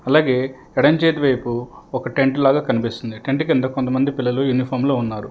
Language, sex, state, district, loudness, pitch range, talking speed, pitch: Telugu, male, Telangana, Hyderabad, -19 LUFS, 125-135 Hz, 145 wpm, 130 Hz